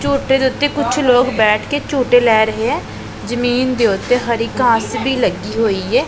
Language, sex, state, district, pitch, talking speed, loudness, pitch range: Punjabi, male, Punjab, Pathankot, 245 Hz, 195 wpm, -15 LUFS, 225-265 Hz